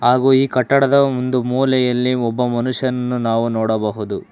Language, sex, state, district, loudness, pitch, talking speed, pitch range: Kannada, male, Karnataka, Bangalore, -17 LUFS, 125 Hz, 125 wpm, 120-130 Hz